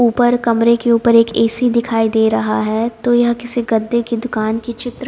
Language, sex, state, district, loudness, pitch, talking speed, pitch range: Hindi, female, Haryana, Jhajjar, -15 LUFS, 235 Hz, 210 wpm, 225-240 Hz